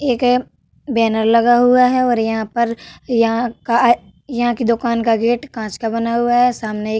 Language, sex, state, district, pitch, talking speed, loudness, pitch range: Hindi, female, Uttar Pradesh, Hamirpur, 235 Hz, 205 wpm, -16 LUFS, 225-245 Hz